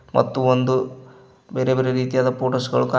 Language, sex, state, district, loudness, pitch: Kannada, male, Karnataka, Koppal, -21 LUFS, 130 Hz